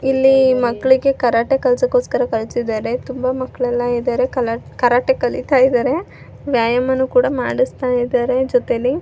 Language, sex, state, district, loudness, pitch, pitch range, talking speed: Kannada, female, Karnataka, Mysore, -17 LUFS, 255 Hz, 245-265 Hz, 125 wpm